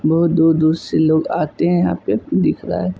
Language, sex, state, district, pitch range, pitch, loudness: Hindi, male, Uttar Pradesh, Budaun, 155-165 Hz, 160 Hz, -17 LUFS